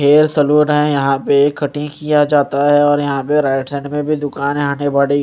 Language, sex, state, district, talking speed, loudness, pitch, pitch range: Hindi, male, Chandigarh, Chandigarh, 220 wpm, -15 LUFS, 145 Hz, 140-150 Hz